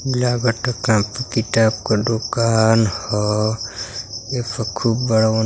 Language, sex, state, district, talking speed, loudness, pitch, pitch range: Bhojpuri, male, Uttar Pradesh, Gorakhpur, 120 wpm, -19 LUFS, 115 Hz, 110-120 Hz